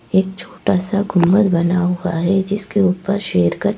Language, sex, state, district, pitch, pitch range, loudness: Hindi, female, Madhya Pradesh, Bhopal, 190 Hz, 180-200 Hz, -17 LUFS